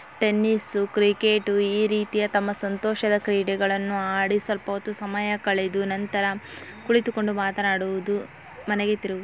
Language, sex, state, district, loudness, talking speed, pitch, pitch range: Kannada, female, Karnataka, Belgaum, -24 LUFS, 95 wpm, 205 Hz, 195-210 Hz